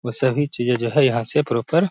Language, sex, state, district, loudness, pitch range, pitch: Hindi, male, Bihar, Gaya, -20 LUFS, 120-145 Hz, 125 Hz